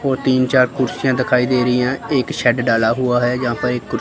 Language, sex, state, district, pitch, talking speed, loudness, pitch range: Hindi, male, Chandigarh, Chandigarh, 125 Hz, 255 wpm, -17 LUFS, 125-130 Hz